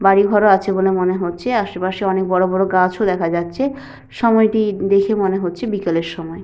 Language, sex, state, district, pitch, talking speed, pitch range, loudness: Bengali, female, West Bengal, Malda, 190 Hz, 175 wpm, 185-205 Hz, -17 LUFS